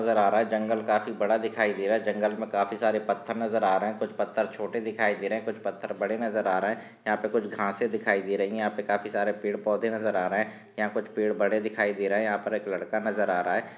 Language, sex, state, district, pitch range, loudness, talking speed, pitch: Hindi, male, Maharashtra, Dhule, 105-110 Hz, -28 LUFS, 290 wpm, 105 Hz